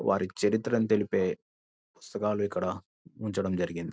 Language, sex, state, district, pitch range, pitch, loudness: Telugu, male, Andhra Pradesh, Guntur, 85-105 Hz, 100 Hz, -30 LUFS